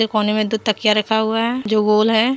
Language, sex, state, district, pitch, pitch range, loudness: Hindi, female, Jharkhand, Deoghar, 220 Hz, 215-225 Hz, -17 LUFS